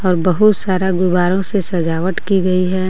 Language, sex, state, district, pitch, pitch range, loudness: Hindi, female, Jharkhand, Garhwa, 185 Hz, 180-190 Hz, -15 LUFS